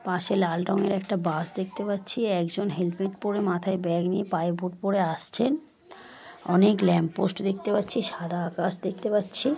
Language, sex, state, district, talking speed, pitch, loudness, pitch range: Bengali, female, West Bengal, Paschim Medinipur, 165 wpm, 190 Hz, -27 LUFS, 180-205 Hz